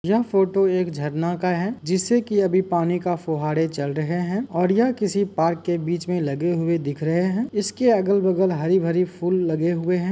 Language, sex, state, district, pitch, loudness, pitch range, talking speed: Hindi, male, Uttar Pradesh, Muzaffarnagar, 180 Hz, -22 LUFS, 170-195 Hz, 220 wpm